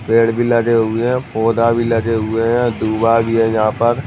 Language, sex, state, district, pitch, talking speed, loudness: Hindi, male, Jharkhand, Sahebganj, 115 Hz, 220 wpm, -15 LUFS